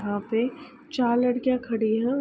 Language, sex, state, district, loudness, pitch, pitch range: Hindi, female, Uttar Pradesh, Ghazipur, -25 LUFS, 245 Hz, 225-260 Hz